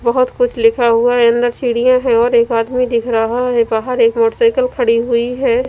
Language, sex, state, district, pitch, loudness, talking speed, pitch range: Hindi, female, Punjab, Fazilka, 240 Hz, -14 LUFS, 210 wpm, 235-255 Hz